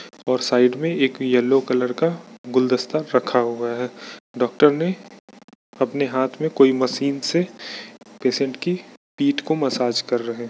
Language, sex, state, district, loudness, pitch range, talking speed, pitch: Hindi, male, Bihar, Bhagalpur, -21 LUFS, 125-155 Hz, 155 wpm, 130 Hz